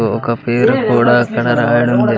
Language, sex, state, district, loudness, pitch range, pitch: Telugu, male, Andhra Pradesh, Sri Satya Sai, -13 LUFS, 115-120 Hz, 120 Hz